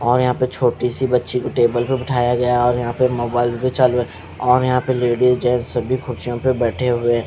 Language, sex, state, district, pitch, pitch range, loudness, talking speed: Hindi, male, Punjab, Fazilka, 125 Hz, 120-125 Hz, -18 LUFS, 230 wpm